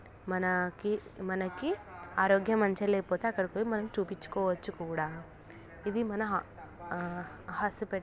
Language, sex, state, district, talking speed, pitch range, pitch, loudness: Telugu, female, Telangana, Karimnagar, 120 wpm, 180-210 Hz, 190 Hz, -33 LUFS